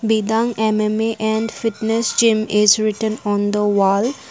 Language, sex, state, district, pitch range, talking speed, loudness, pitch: English, female, Assam, Kamrup Metropolitan, 210-225 Hz, 140 wpm, -17 LUFS, 220 Hz